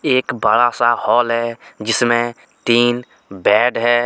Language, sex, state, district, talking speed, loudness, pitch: Hindi, male, Jharkhand, Deoghar, 135 wpm, -16 LUFS, 120 Hz